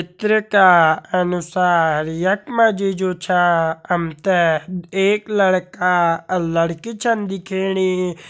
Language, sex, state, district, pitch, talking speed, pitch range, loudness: Hindi, male, Uttarakhand, Uttarkashi, 180 Hz, 125 wpm, 170-195 Hz, -18 LUFS